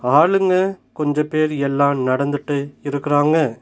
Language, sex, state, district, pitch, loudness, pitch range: Tamil, male, Tamil Nadu, Nilgiris, 145 Hz, -18 LUFS, 140-155 Hz